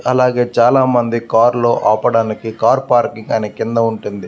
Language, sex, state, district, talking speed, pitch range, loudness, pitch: Telugu, male, Andhra Pradesh, Visakhapatnam, 155 wpm, 110-125 Hz, -14 LUFS, 115 Hz